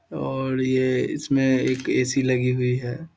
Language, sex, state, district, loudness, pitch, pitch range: Hindi, male, Bihar, Samastipur, -23 LUFS, 130 Hz, 125-135 Hz